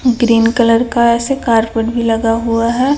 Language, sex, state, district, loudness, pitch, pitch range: Hindi, female, Chhattisgarh, Raipur, -13 LUFS, 235 Hz, 230-240 Hz